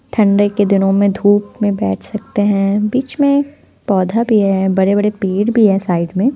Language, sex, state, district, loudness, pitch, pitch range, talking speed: Hindi, female, Punjab, Fazilka, -14 LUFS, 205 Hz, 195-220 Hz, 205 wpm